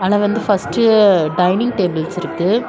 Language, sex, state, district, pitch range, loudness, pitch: Tamil, female, Tamil Nadu, Kanyakumari, 180-215 Hz, -15 LUFS, 195 Hz